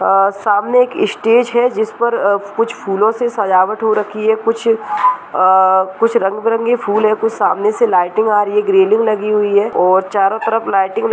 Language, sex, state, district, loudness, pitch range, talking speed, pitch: Hindi, female, Uttar Pradesh, Muzaffarnagar, -14 LUFS, 200-230 Hz, 220 wpm, 215 Hz